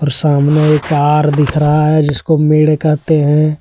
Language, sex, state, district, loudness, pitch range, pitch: Hindi, male, Jharkhand, Deoghar, -12 LUFS, 150-155 Hz, 150 Hz